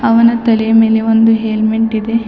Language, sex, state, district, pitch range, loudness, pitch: Kannada, female, Karnataka, Bidar, 220-225 Hz, -11 LUFS, 225 Hz